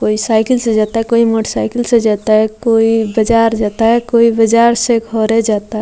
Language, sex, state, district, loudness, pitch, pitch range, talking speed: Bhojpuri, female, Bihar, Muzaffarpur, -12 LUFS, 225 Hz, 220-230 Hz, 165 wpm